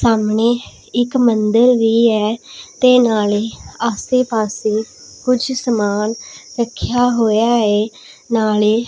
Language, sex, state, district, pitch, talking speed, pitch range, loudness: Punjabi, female, Punjab, Pathankot, 230 Hz, 110 wpm, 215-240 Hz, -16 LUFS